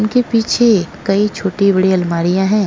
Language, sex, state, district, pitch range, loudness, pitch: Hindi, female, Goa, North and South Goa, 190-215 Hz, -14 LUFS, 200 Hz